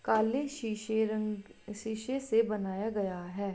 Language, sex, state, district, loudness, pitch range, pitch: Hindi, female, Uttar Pradesh, Jalaun, -33 LUFS, 205-225 Hz, 215 Hz